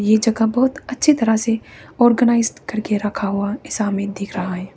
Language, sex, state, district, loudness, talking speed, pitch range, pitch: Hindi, female, Arunachal Pradesh, Papum Pare, -19 LUFS, 190 wpm, 200-240 Hz, 220 Hz